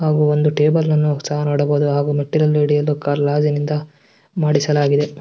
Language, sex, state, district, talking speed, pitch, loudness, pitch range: Kannada, male, Karnataka, Dharwad, 90 wpm, 150 Hz, -17 LUFS, 145-150 Hz